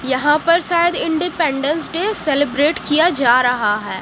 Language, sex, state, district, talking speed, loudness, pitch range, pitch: Hindi, female, Haryana, Jhajjar, 150 wpm, -16 LUFS, 270-340 Hz, 300 Hz